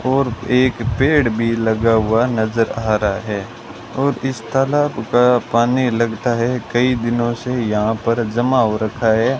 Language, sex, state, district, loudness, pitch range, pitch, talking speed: Hindi, male, Rajasthan, Bikaner, -17 LUFS, 110-125 Hz, 120 Hz, 165 wpm